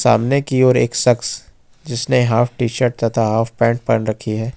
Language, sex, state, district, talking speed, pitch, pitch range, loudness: Hindi, male, Jharkhand, Ranchi, 195 wpm, 120 Hz, 115-125 Hz, -17 LUFS